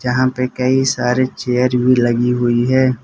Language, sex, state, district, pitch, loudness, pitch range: Hindi, male, Arunachal Pradesh, Lower Dibang Valley, 125 Hz, -15 LUFS, 125-130 Hz